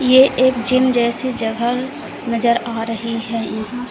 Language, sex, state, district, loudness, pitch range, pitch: Hindi, female, Uttar Pradesh, Lalitpur, -17 LUFS, 230-255 Hz, 235 Hz